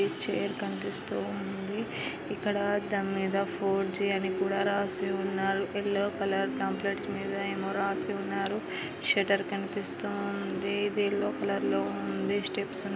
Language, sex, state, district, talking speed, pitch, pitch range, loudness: Telugu, female, Andhra Pradesh, Anantapur, 135 wpm, 195 Hz, 195-200 Hz, -31 LUFS